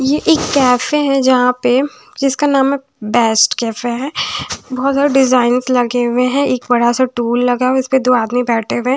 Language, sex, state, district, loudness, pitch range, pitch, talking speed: Hindi, female, Bihar, West Champaran, -14 LUFS, 245-275 Hz, 255 Hz, 195 wpm